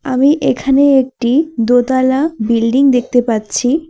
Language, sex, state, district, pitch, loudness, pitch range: Bengali, female, West Bengal, Alipurduar, 260 Hz, -13 LUFS, 245-275 Hz